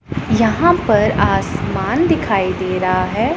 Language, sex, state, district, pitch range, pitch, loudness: Hindi, female, Punjab, Pathankot, 185-220 Hz, 185 Hz, -16 LUFS